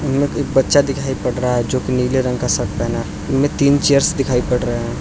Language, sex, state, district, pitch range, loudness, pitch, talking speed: Hindi, male, Arunachal Pradesh, Lower Dibang Valley, 125-140 Hz, -17 LUFS, 130 Hz, 225 wpm